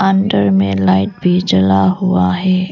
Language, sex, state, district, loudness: Hindi, female, Arunachal Pradesh, Lower Dibang Valley, -13 LUFS